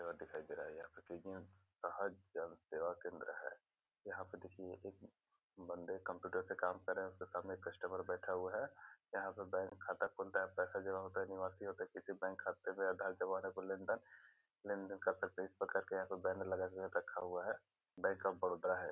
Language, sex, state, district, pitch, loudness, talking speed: Hindi, male, Bihar, Gopalganj, 95 Hz, -45 LUFS, 205 wpm